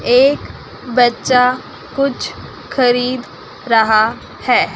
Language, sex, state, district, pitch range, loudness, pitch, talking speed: Hindi, female, Chandigarh, Chandigarh, 240-255 Hz, -15 LUFS, 250 Hz, 75 wpm